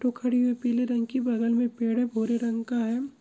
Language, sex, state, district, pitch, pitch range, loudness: Hindi, female, Andhra Pradesh, Krishna, 240 Hz, 230-245 Hz, -27 LUFS